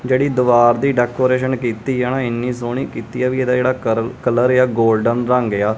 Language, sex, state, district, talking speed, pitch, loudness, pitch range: Punjabi, male, Punjab, Kapurthala, 230 wpm, 125 Hz, -17 LUFS, 120-130 Hz